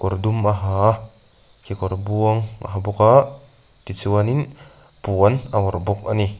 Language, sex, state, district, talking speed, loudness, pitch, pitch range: Mizo, male, Mizoram, Aizawl, 180 wpm, -19 LUFS, 105 Hz, 100-120 Hz